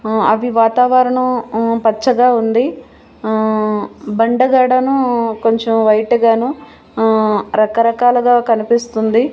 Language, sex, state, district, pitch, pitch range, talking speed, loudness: Telugu, female, Andhra Pradesh, Manyam, 230 Hz, 220-250 Hz, 90 wpm, -14 LUFS